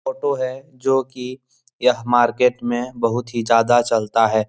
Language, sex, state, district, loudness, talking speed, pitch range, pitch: Hindi, male, Bihar, Supaul, -19 LUFS, 145 wpm, 115-130 Hz, 125 Hz